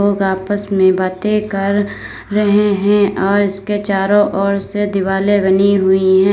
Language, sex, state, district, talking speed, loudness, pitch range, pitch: Hindi, female, Uttar Pradesh, Lalitpur, 140 wpm, -15 LUFS, 195-205 Hz, 200 Hz